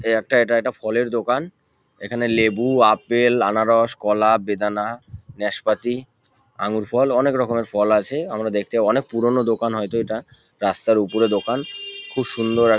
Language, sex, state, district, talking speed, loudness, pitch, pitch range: Bengali, male, West Bengal, North 24 Parganas, 155 wpm, -20 LUFS, 115 Hz, 110-120 Hz